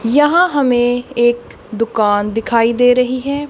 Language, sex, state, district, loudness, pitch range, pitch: Hindi, female, Punjab, Kapurthala, -14 LUFS, 230-270 Hz, 245 Hz